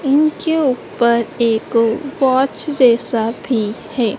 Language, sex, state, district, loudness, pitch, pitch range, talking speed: Hindi, female, Madhya Pradesh, Dhar, -16 LUFS, 245 Hz, 230-275 Hz, 100 wpm